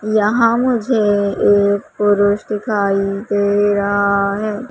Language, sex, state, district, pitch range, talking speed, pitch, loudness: Hindi, female, Madhya Pradesh, Umaria, 200-215 Hz, 100 wpm, 205 Hz, -16 LUFS